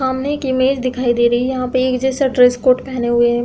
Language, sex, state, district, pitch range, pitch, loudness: Hindi, female, Uttar Pradesh, Deoria, 245-260 Hz, 255 Hz, -16 LUFS